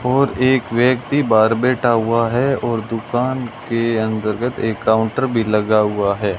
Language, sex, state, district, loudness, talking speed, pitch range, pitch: Hindi, male, Rajasthan, Bikaner, -17 LUFS, 160 wpm, 110-125 Hz, 115 Hz